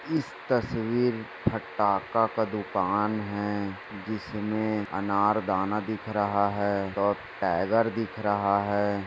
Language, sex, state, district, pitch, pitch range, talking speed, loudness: Hindi, male, Maharashtra, Dhule, 105 Hz, 100-110 Hz, 105 wpm, -28 LUFS